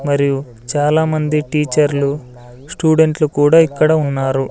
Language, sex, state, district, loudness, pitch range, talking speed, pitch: Telugu, male, Andhra Pradesh, Sri Satya Sai, -15 LUFS, 140-155 Hz, 95 wpm, 150 Hz